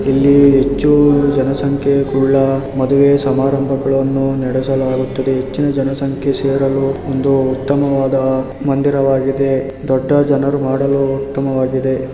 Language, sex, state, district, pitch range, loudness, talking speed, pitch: Kannada, male, Karnataka, Dakshina Kannada, 135-140 Hz, -14 LUFS, 80 wpm, 135 Hz